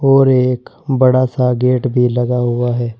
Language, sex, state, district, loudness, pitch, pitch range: Hindi, male, Uttar Pradesh, Saharanpur, -14 LUFS, 125 Hz, 125-130 Hz